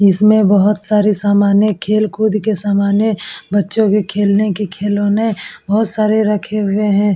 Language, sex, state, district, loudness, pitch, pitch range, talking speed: Hindi, female, Uttar Pradesh, Etah, -14 LUFS, 205 Hz, 200-215 Hz, 150 wpm